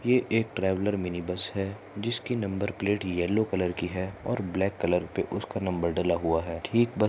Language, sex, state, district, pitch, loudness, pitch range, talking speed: Hindi, male, Maharashtra, Solapur, 95 Hz, -29 LUFS, 90-105 Hz, 210 wpm